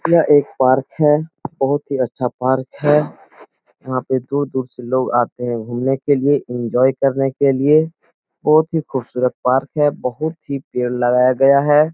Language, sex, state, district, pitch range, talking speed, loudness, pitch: Hindi, male, Bihar, Jahanabad, 125-145 Hz, 170 wpm, -17 LUFS, 135 Hz